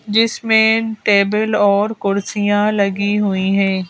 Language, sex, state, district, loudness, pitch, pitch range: Hindi, female, Madhya Pradesh, Bhopal, -16 LUFS, 205 Hz, 200-220 Hz